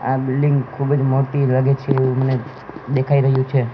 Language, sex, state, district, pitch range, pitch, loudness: Gujarati, male, Gujarat, Gandhinagar, 130-140 Hz, 135 Hz, -18 LUFS